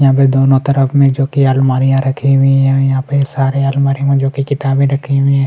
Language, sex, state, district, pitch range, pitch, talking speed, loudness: Hindi, male, Chhattisgarh, Kabirdham, 135-140 Hz, 135 Hz, 250 wpm, -12 LUFS